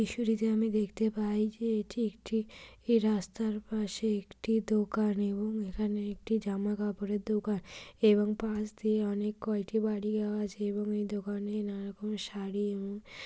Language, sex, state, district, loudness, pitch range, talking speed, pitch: Bengali, female, West Bengal, Dakshin Dinajpur, -33 LUFS, 205-220 Hz, 150 wpm, 210 Hz